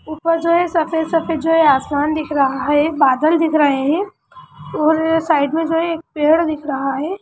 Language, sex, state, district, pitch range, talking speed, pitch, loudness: Hindi, female, Bihar, Sitamarhi, 290-330 Hz, 200 wpm, 315 Hz, -16 LUFS